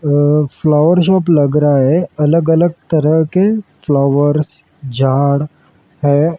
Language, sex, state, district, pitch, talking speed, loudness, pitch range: Hindi, male, Maharashtra, Mumbai Suburban, 150 Hz, 120 wpm, -13 LUFS, 145-165 Hz